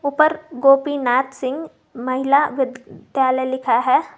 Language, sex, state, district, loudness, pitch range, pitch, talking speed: Hindi, female, Jharkhand, Garhwa, -18 LUFS, 255-285 Hz, 265 Hz, 115 wpm